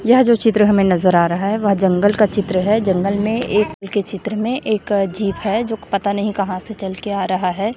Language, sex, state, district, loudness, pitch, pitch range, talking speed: Hindi, female, Chhattisgarh, Raipur, -17 LUFS, 200 Hz, 190-215 Hz, 215 wpm